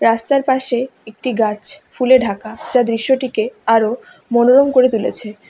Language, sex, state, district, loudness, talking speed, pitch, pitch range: Bengali, female, West Bengal, Alipurduar, -16 LUFS, 130 wpm, 240 Hz, 220-260 Hz